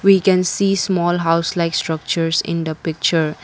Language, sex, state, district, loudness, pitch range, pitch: English, female, Assam, Kamrup Metropolitan, -18 LUFS, 165-190 Hz, 170 Hz